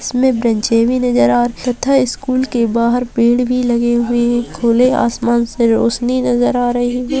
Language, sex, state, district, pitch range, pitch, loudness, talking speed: Hindi, female, Bihar, Purnia, 235-250 Hz, 240 Hz, -14 LUFS, 225 wpm